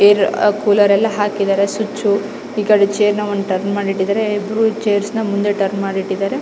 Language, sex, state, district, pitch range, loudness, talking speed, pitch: Kannada, female, Karnataka, Shimoga, 200-210 Hz, -16 LUFS, 185 wpm, 205 Hz